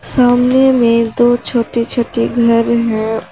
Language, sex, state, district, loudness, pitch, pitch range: Hindi, female, Jharkhand, Garhwa, -13 LUFS, 235 Hz, 230-245 Hz